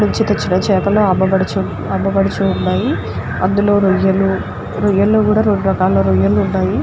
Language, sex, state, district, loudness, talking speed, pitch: Telugu, female, Andhra Pradesh, Guntur, -15 LUFS, 105 wpm, 185 Hz